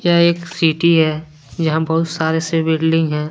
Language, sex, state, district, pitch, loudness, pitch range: Hindi, male, Jharkhand, Deoghar, 160 Hz, -16 LUFS, 160-170 Hz